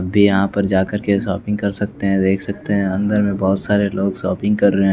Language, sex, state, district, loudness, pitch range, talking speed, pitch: Hindi, male, Bihar, West Champaran, -18 LUFS, 95-100 Hz, 255 wpm, 100 Hz